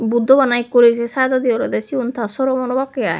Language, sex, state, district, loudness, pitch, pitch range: Chakma, female, Tripura, West Tripura, -16 LUFS, 250 Hz, 235-265 Hz